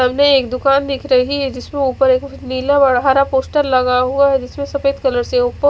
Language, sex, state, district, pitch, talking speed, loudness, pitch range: Hindi, female, Odisha, Khordha, 275 Hz, 220 wpm, -15 LUFS, 255-280 Hz